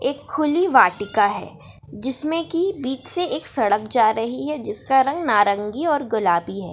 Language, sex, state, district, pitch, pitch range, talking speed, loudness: Hindi, female, Bihar, Darbhanga, 260 Hz, 210-300 Hz, 170 wpm, -20 LUFS